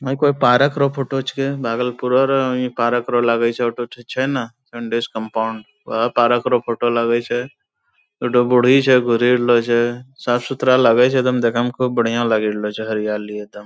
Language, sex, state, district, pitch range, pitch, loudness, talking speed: Angika, male, Bihar, Bhagalpur, 115-130 Hz, 120 Hz, -18 LUFS, 190 wpm